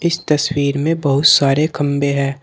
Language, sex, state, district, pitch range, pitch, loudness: Hindi, male, Uttar Pradesh, Saharanpur, 140-155 Hz, 145 Hz, -15 LUFS